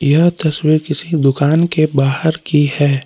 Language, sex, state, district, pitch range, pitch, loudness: Hindi, male, Jharkhand, Palamu, 145-160 Hz, 155 Hz, -14 LUFS